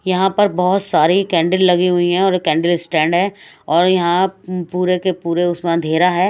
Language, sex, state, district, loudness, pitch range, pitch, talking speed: Hindi, female, Odisha, Malkangiri, -16 LUFS, 170-185 Hz, 180 Hz, 190 wpm